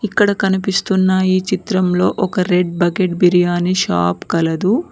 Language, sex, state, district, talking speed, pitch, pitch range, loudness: Telugu, female, Telangana, Mahabubabad, 120 wpm, 185 Hz, 175-190 Hz, -16 LUFS